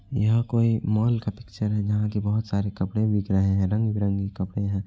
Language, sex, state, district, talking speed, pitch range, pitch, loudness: Hindi, male, Bihar, Araria, 220 wpm, 100-110 Hz, 105 Hz, -25 LUFS